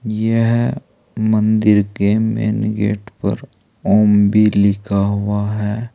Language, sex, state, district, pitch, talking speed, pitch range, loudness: Hindi, male, Uttar Pradesh, Saharanpur, 105 Hz, 110 wpm, 105-110 Hz, -16 LUFS